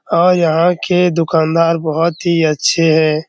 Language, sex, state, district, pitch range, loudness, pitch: Hindi, male, Bihar, Araria, 160-170 Hz, -13 LUFS, 165 Hz